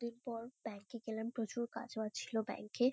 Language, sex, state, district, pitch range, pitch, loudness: Bengali, female, West Bengal, Kolkata, 220-235 Hz, 230 Hz, -42 LUFS